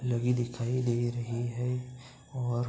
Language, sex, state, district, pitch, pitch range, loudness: Hindi, male, Uttar Pradesh, Budaun, 120 Hz, 120-125 Hz, -32 LUFS